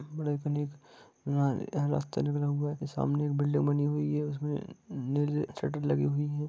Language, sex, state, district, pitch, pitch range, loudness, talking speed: Hindi, male, Jharkhand, Sahebganj, 145 Hz, 145-150 Hz, -31 LUFS, 150 wpm